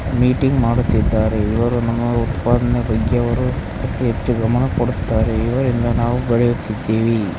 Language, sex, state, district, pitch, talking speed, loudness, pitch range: Kannada, male, Karnataka, Bellary, 120 Hz, 115 wpm, -18 LUFS, 110-120 Hz